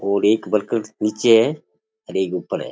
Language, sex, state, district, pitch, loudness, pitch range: Rajasthani, male, Rajasthan, Churu, 105 Hz, -19 LUFS, 100-115 Hz